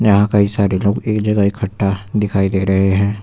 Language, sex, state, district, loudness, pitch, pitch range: Hindi, male, Uttar Pradesh, Lucknow, -16 LUFS, 100 Hz, 95-105 Hz